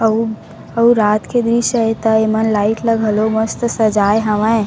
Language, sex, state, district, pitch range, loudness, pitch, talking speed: Chhattisgarhi, female, Chhattisgarh, Raigarh, 215-230 Hz, -15 LUFS, 220 Hz, 190 wpm